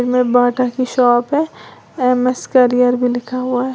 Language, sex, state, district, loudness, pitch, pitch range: Hindi, female, Uttar Pradesh, Lalitpur, -15 LUFS, 250 Hz, 245-255 Hz